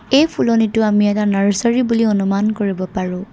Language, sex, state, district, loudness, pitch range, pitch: Assamese, female, Assam, Kamrup Metropolitan, -16 LUFS, 195-230 Hz, 210 Hz